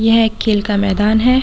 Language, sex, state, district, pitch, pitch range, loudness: Hindi, female, Bihar, Saran, 220 Hz, 205-230 Hz, -14 LUFS